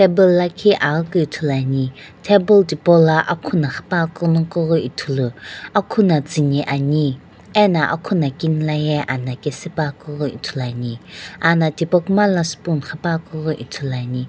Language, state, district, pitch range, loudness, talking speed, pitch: Sumi, Nagaland, Dimapur, 140-170 Hz, -18 LUFS, 140 wpm, 160 Hz